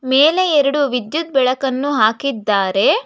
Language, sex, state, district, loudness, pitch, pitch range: Kannada, female, Karnataka, Bangalore, -16 LUFS, 270 Hz, 245-290 Hz